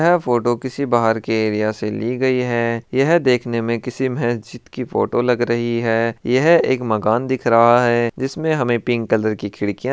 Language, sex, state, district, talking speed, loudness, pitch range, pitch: Hindi, male, Rajasthan, Churu, 195 wpm, -18 LUFS, 115-130 Hz, 120 Hz